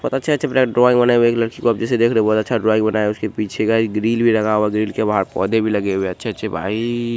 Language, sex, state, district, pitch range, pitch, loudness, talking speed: Hindi, male, Bihar, Supaul, 105-115 Hz, 110 Hz, -18 LUFS, 300 wpm